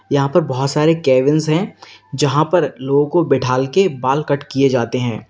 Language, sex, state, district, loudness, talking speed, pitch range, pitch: Hindi, male, Uttar Pradesh, Lalitpur, -16 LUFS, 190 wpm, 130-155 Hz, 140 Hz